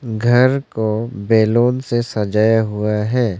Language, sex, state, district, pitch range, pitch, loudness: Hindi, male, Arunachal Pradesh, Longding, 105-120 Hz, 110 Hz, -17 LUFS